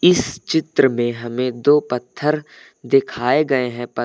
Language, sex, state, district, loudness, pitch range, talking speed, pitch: Hindi, male, Uttar Pradesh, Lucknow, -19 LUFS, 120-150 Hz, 150 wpm, 130 Hz